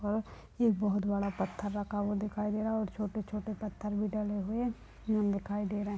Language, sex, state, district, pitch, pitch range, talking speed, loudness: Hindi, female, Uttar Pradesh, Deoria, 210 Hz, 205-215 Hz, 230 wpm, -34 LUFS